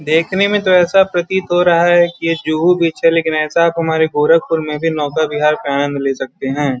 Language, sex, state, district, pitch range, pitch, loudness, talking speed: Hindi, male, Uttar Pradesh, Gorakhpur, 150-175 Hz, 165 Hz, -14 LUFS, 240 wpm